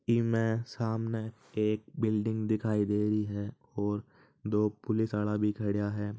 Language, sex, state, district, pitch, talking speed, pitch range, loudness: Marwari, male, Rajasthan, Nagaur, 110 Hz, 155 wpm, 105-110 Hz, -32 LUFS